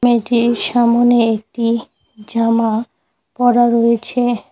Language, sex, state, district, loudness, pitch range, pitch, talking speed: Bengali, female, West Bengal, Cooch Behar, -15 LUFS, 230-240 Hz, 235 Hz, 80 wpm